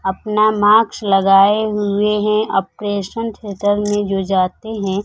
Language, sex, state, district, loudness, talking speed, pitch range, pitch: Hindi, female, Bihar, Kaimur, -16 LUFS, 130 wpm, 195-215 Hz, 205 Hz